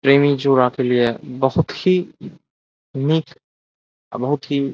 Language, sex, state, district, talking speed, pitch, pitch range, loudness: Maithili, male, Bihar, Saharsa, 140 wpm, 140 Hz, 130-150 Hz, -19 LUFS